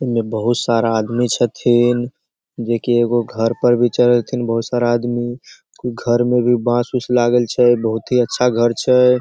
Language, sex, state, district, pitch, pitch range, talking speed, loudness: Maithili, male, Bihar, Samastipur, 120 Hz, 120-125 Hz, 170 wpm, -16 LUFS